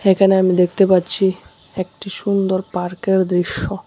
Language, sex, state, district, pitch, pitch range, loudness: Bengali, male, Tripura, West Tripura, 190 Hz, 180-195 Hz, -17 LUFS